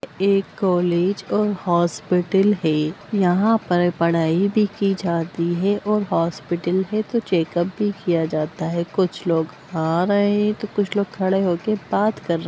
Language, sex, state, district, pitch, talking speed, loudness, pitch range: Hindi, female, Bihar, Saran, 185 Hz, 160 wpm, -21 LUFS, 170-205 Hz